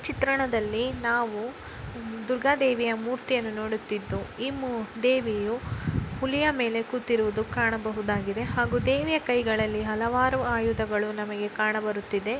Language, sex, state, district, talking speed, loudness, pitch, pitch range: Kannada, female, Karnataka, Dakshina Kannada, 85 wpm, -27 LUFS, 230 Hz, 215-255 Hz